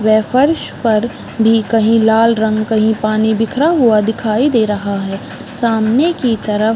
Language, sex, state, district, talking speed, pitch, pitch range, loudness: Hindi, female, Chhattisgarh, Balrampur, 150 wpm, 220 Hz, 215-235 Hz, -14 LUFS